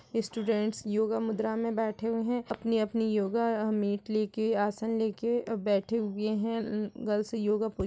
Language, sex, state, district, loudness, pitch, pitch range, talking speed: Hindi, female, Uttar Pradesh, Etah, -30 LUFS, 220 Hz, 215-225 Hz, 160 wpm